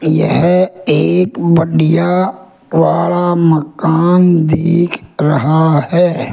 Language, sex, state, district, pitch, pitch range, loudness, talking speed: Hindi, male, Rajasthan, Jaipur, 170 Hz, 160-180 Hz, -12 LUFS, 75 wpm